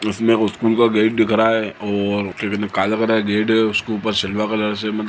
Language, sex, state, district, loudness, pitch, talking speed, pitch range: Hindi, male, Bihar, Samastipur, -18 LUFS, 110 Hz, 235 wpm, 105-110 Hz